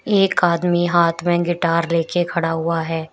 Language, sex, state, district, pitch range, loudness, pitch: Hindi, female, Uttar Pradesh, Shamli, 165-175 Hz, -18 LUFS, 170 Hz